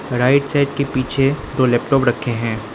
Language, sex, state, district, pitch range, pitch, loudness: Hindi, male, Arunachal Pradesh, Lower Dibang Valley, 120-140 Hz, 130 Hz, -17 LUFS